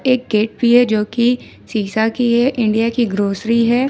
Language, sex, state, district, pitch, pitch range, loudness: Hindi, female, Jharkhand, Ranchi, 230 Hz, 215-245 Hz, -16 LUFS